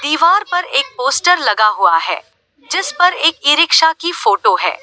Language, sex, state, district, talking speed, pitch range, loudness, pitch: Hindi, female, Uttar Pradesh, Lalitpur, 185 wpm, 275-355 Hz, -13 LUFS, 320 Hz